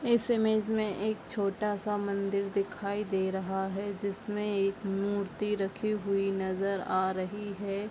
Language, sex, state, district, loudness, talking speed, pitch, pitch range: Hindi, female, Bihar, Bhagalpur, -32 LUFS, 145 wpm, 200 Hz, 195-210 Hz